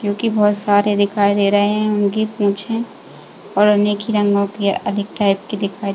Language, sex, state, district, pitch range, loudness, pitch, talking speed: Hindi, female, Uttar Pradesh, Jalaun, 200-210 Hz, -17 LUFS, 205 Hz, 200 wpm